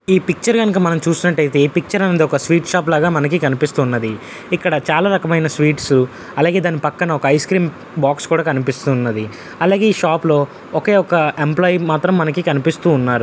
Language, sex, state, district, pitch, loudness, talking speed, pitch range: Telugu, male, Andhra Pradesh, Visakhapatnam, 160 Hz, -16 LUFS, 165 wpm, 145-180 Hz